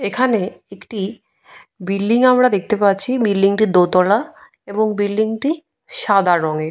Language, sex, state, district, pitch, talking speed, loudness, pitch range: Bengali, female, Jharkhand, Jamtara, 210 Hz, 105 wpm, -17 LUFS, 195-245 Hz